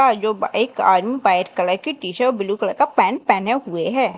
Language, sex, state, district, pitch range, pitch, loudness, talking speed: Hindi, female, Madhya Pradesh, Dhar, 185-260 Hz, 215 Hz, -19 LUFS, 200 wpm